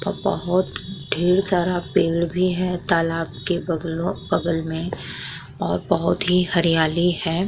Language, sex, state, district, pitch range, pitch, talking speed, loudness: Hindi, female, Uttar Pradesh, Muzaffarnagar, 165-180 Hz, 175 Hz, 135 wpm, -22 LUFS